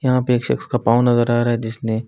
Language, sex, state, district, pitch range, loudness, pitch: Hindi, male, Delhi, New Delhi, 115-125 Hz, -18 LUFS, 120 Hz